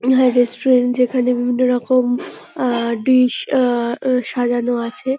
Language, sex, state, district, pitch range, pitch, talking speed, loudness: Bengali, female, West Bengal, Kolkata, 245-255 Hz, 250 Hz, 115 wpm, -17 LUFS